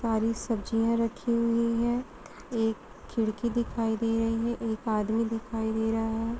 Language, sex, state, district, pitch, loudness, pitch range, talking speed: Hindi, female, Bihar, Gopalganj, 225 Hz, -29 LUFS, 225-235 Hz, 195 wpm